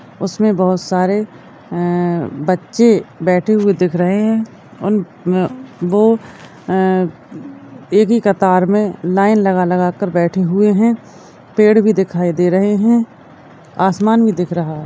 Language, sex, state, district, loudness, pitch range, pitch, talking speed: Hindi, female, Maharashtra, Chandrapur, -15 LUFS, 175-210 Hz, 185 Hz, 145 wpm